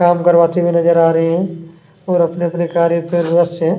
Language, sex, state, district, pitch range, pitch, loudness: Hindi, male, Chhattisgarh, Kabirdham, 165-175 Hz, 170 Hz, -14 LUFS